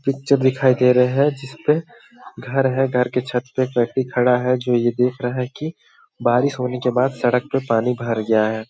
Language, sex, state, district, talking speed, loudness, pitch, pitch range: Hindi, male, Chhattisgarh, Balrampur, 220 wpm, -19 LUFS, 125 Hz, 125-135 Hz